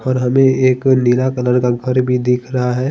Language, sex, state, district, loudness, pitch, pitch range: Hindi, male, Bihar, Patna, -15 LUFS, 125 Hz, 125-130 Hz